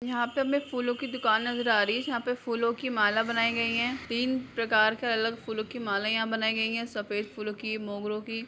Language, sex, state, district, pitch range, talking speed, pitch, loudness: Hindi, female, Jharkhand, Sahebganj, 220-245 Hz, 240 wpm, 230 Hz, -28 LUFS